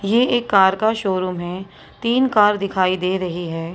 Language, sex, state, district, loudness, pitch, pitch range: Hindi, female, Maharashtra, Mumbai Suburban, -19 LUFS, 195 Hz, 185-220 Hz